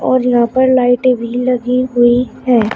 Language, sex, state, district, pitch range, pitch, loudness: Hindi, female, Uttar Pradesh, Shamli, 240-255 Hz, 250 Hz, -13 LUFS